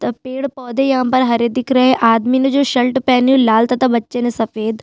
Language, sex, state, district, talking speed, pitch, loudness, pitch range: Hindi, female, Chhattisgarh, Sukma, 250 wpm, 255 Hz, -15 LUFS, 235-260 Hz